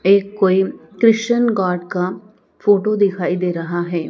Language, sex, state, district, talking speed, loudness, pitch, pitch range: Hindi, male, Madhya Pradesh, Dhar, 145 wpm, -17 LUFS, 190 Hz, 180-205 Hz